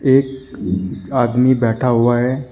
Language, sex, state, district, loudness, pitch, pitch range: Hindi, male, Uttar Pradesh, Shamli, -17 LUFS, 125 Hz, 115-130 Hz